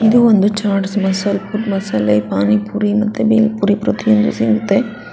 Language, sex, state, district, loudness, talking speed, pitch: Kannada, female, Karnataka, Bangalore, -15 LUFS, 115 wpm, 200 Hz